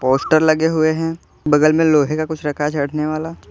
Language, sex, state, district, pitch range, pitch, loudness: Hindi, male, Uttar Pradesh, Lalitpur, 150-160 Hz, 155 Hz, -17 LUFS